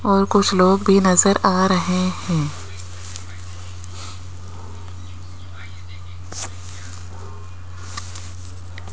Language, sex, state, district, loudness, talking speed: Hindi, female, Rajasthan, Jaipur, -18 LUFS, 55 wpm